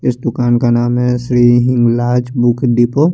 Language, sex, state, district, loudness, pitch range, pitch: Hindi, male, Chandigarh, Chandigarh, -13 LUFS, 120-125 Hz, 120 Hz